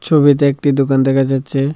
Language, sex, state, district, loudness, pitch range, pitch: Bengali, male, Tripura, Dhalai, -14 LUFS, 135-145 Hz, 135 Hz